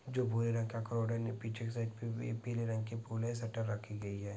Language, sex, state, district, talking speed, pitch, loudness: Hindi, male, Andhra Pradesh, Krishna, 245 wpm, 115 Hz, -39 LUFS